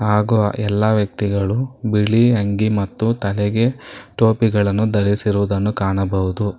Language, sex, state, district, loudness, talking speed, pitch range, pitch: Kannada, male, Karnataka, Bangalore, -18 LUFS, 90 wpm, 100-110 Hz, 105 Hz